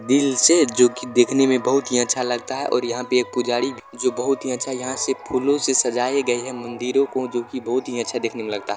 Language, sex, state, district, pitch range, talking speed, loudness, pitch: Maithili, male, Bihar, Supaul, 120-130 Hz, 260 wpm, -20 LUFS, 125 Hz